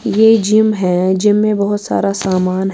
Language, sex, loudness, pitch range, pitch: Urdu, female, -13 LUFS, 190-215 Hz, 200 Hz